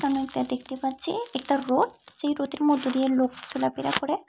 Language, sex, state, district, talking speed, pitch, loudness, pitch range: Bengali, female, Tripura, Unakoti, 180 wpm, 270 Hz, -26 LUFS, 255-295 Hz